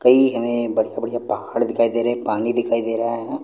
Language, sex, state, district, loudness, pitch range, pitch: Hindi, male, Punjab, Pathankot, -20 LUFS, 115-120 Hz, 115 Hz